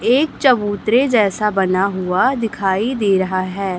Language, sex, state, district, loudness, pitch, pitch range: Hindi, female, Chhattisgarh, Raipur, -17 LUFS, 205 Hz, 190-240 Hz